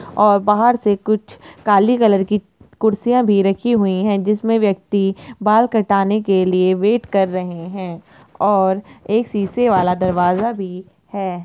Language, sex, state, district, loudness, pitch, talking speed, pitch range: Hindi, female, Uttar Pradesh, Etah, -17 LUFS, 200 Hz, 150 wpm, 190-215 Hz